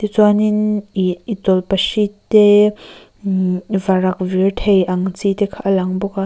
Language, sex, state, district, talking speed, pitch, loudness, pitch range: Mizo, female, Mizoram, Aizawl, 155 wpm, 195 Hz, -16 LUFS, 185-210 Hz